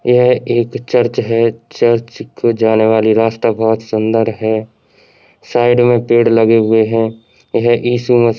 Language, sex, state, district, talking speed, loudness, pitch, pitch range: Hindi, male, Uttar Pradesh, Varanasi, 150 wpm, -13 LUFS, 115 Hz, 110-120 Hz